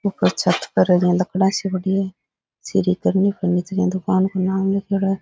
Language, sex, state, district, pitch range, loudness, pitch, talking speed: Rajasthani, male, Rajasthan, Nagaur, 185-195 Hz, -20 LUFS, 190 Hz, 175 wpm